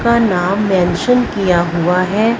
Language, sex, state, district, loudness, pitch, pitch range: Hindi, female, Punjab, Fazilka, -14 LUFS, 195 Hz, 180-230 Hz